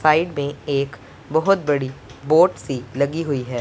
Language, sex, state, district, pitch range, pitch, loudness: Hindi, male, Punjab, Pathankot, 135-155 Hz, 140 Hz, -21 LUFS